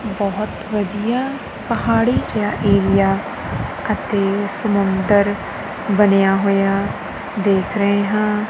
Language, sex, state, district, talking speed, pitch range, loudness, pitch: Punjabi, female, Punjab, Kapurthala, 80 wpm, 195-210 Hz, -18 LUFS, 200 Hz